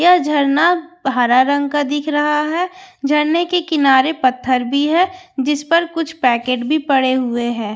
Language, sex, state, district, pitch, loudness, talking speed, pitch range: Hindi, female, Bihar, Katihar, 295 Hz, -16 LUFS, 170 wpm, 260-335 Hz